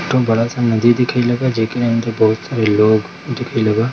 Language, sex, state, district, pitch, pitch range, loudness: Hindi, male, Bihar, Darbhanga, 115 Hz, 110-125 Hz, -16 LUFS